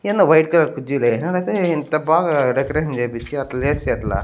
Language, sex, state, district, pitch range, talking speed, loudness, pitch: Telugu, male, Andhra Pradesh, Annamaya, 135-165 Hz, 170 wpm, -18 LUFS, 150 Hz